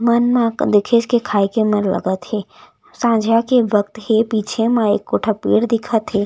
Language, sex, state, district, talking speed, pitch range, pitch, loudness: Chhattisgarhi, female, Chhattisgarh, Raigarh, 200 wpm, 210-235 Hz, 220 Hz, -17 LUFS